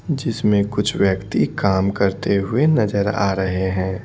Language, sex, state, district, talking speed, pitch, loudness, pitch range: Hindi, male, Bihar, Patna, 150 wpm, 100 Hz, -19 LUFS, 95-105 Hz